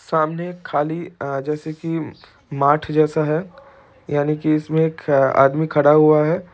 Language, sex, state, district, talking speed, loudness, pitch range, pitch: Hindi, male, Bihar, East Champaran, 165 wpm, -19 LUFS, 145-160 Hz, 155 Hz